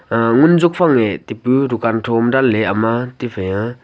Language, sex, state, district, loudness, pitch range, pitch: Wancho, male, Arunachal Pradesh, Longding, -15 LUFS, 115-130 Hz, 120 Hz